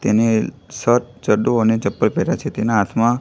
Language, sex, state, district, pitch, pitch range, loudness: Gujarati, male, Gujarat, Gandhinagar, 115 Hz, 110-120 Hz, -18 LUFS